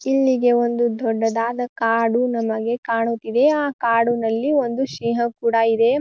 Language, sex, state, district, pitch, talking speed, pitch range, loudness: Kannada, female, Karnataka, Bijapur, 235 Hz, 120 wpm, 230-250 Hz, -20 LUFS